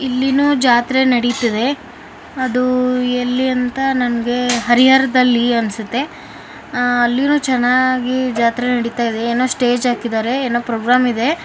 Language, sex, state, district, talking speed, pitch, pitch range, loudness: Kannada, male, Karnataka, Bijapur, 115 wpm, 250 Hz, 240-255 Hz, -16 LUFS